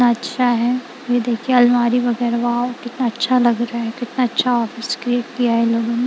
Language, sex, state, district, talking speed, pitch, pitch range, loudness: Hindi, female, Punjab, Kapurthala, 205 wpm, 245 Hz, 235-245 Hz, -18 LUFS